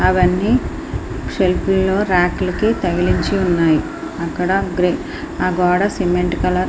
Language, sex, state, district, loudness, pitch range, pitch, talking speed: Telugu, female, Andhra Pradesh, Srikakulam, -17 LUFS, 180-190 Hz, 180 Hz, 110 wpm